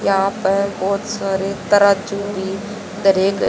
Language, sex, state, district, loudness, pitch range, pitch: Hindi, female, Haryana, Jhajjar, -18 LUFS, 195-200 Hz, 200 Hz